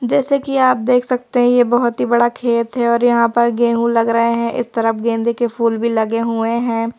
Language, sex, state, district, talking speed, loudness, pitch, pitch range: Hindi, female, Madhya Pradesh, Bhopal, 240 wpm, -16 LUFS, 235 Hz, 230-245 Hz